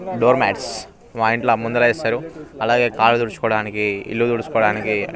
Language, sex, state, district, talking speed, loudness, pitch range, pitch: Telugu, male, Telangana, Nalgonda, 115 wpm, -19 LUFS, 110-120 Hz, 115 Hz